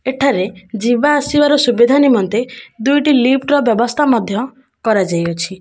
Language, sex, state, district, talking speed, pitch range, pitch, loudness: Odia, female, Odisha, Khordha, 115 wpm, 215-280 Hz, 245 Hz, -14 LUFS